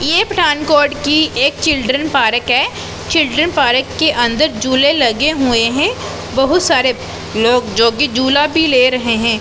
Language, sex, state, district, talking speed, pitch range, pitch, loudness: Hindi, female, Punjab, Pathankot, 160 wpm, 245-305 Hz, 275 Hz, -13 LUFS